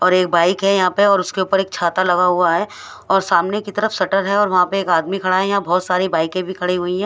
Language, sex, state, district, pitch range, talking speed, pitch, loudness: Hindi, female, Odisha, Khordha, 180-195 Hz, 290 wpm, 185 Hz, -17 LUFS